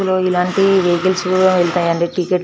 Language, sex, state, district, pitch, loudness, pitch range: Telugu, female, Telangana, Nalgonda, 180 Hz, -15 LUFS, 175-185 Hz